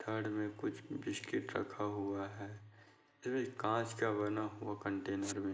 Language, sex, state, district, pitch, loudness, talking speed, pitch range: Hindi, male, Maharashtra, Dhule, 105 Hz, -40 LUFS, 140 wpm, 100-110 Hz